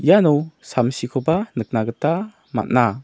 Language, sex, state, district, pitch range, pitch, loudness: Garo, male, Meghalaya, South Garo Hills, 120-160 Hz, 130 Hz, -20 LUFS